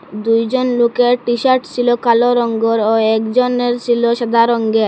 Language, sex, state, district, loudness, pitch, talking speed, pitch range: Bengali, female, Assam, Hailakandi, -14 LUFS, 235 Hz, 135 wpm, 225-245 Hz